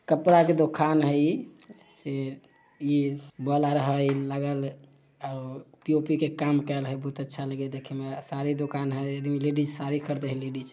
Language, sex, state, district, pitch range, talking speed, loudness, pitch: Maithili, male, Bihar, Samastipur, 135-145 Hz, 85 wpm, -27 LUFS, 140 Hz